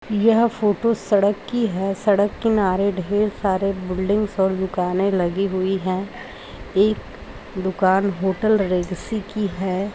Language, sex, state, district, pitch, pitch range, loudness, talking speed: Hindi, female, Uttar Pradesh, Jalaun, 195 Hz, 190-210 Hz, -21 LUFS, 125 wpm